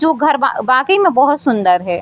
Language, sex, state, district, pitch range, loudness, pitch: Hindi, female, Bihar, Sitamarhi, 245-305 Hz, -13 LUFS, 275 Hz